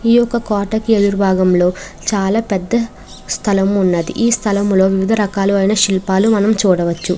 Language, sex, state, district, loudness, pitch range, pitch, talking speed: Telugu, female, Andhra Pradesh, Chittoor, -15 LUFS, 190-220 Hz, 200 Hz, 140 wpm